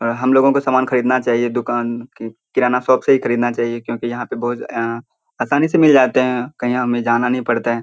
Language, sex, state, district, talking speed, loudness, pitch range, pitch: Hindi, male, Bihar, Purnia, 230 wpm, -17 LUFS, 120-130 Hz, 120 Hz